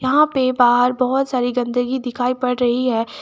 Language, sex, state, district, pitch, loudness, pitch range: Hindi, female, Jharkhand, Garhwa, 250 Hz, -18 LUFS, 245-255 Hz